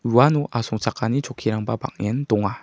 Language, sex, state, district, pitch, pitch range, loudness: Garo, male, Meghalaya, South Garo Hills, 115 Hz, 110-130 Hz, -22 LUFS